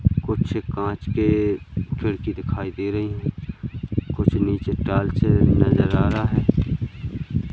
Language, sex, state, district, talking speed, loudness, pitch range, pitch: Hindi, male, Madhya Pradesh, Katni, 120 wpm, -22 LUFS, 100-110 Hz, 105 Hz